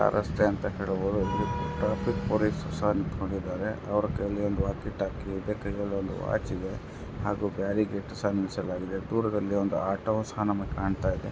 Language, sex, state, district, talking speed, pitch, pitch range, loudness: Kannada, male, Karnataka, Dharwad, 145 wpm, 100 Hz, 95-105 Hz, -30 LUFS